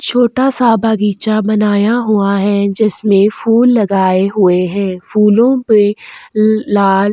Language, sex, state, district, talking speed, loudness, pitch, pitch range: Hindi, female, Goa, North and South Goa, 125 wpm, -12 LUFS, 210 Hz, 200-225 Hz